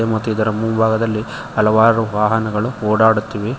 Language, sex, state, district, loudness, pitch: Kannada, male, Karnataka, Koppal, -16 LUFS, 110 Hz